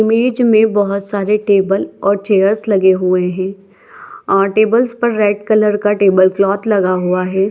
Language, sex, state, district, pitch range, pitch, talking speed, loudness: Hindi, female, Chhattisgarh, Bilaspur, 195-215 Hz, 200 Hz, 170 wpm, -14 LUFS